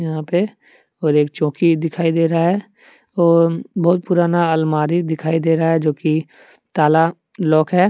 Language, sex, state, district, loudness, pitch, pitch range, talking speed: Hindi, male, Jharkhand, Deoghar, -17 LUFS, 165 Hz, 160-175 Hz, 160 wpm